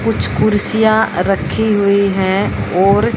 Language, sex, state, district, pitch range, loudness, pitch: Hindi, female, Haryana, Rohtak, 180-210 Hz, -14 LUFS, 195 Hz